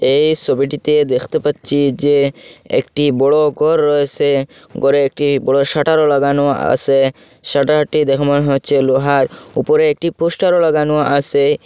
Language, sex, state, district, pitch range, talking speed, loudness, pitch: Bengali, male, Assam, Hailakandi, 140-150 Hz, 130 wpm, -14 LUFS, 145 Hz